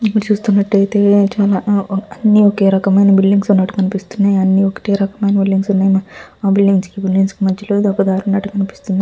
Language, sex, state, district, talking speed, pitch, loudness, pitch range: Telugu, female, Andhra Pradesh, Visakhapatnam, 160 wpm, 195 Hz, -14 LUFS, 195-205 Hz